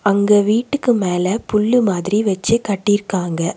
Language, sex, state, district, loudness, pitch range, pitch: Tamil, female, Tamil Nadu, Nilgiris, -17 LUFS, 190-220 Hz, 205 Hz